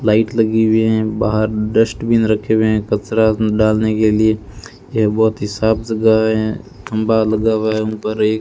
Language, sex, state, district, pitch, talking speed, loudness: Hindi, male, Rajasthan, Bikaner, 110 Hz, 190 wpm, -16 LUFS